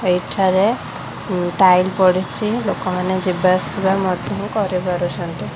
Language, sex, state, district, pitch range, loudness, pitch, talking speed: Odia, female, Odisha, Khordha, 180-195 Hz, -18 LUFS, 185 Hz, 95 wpm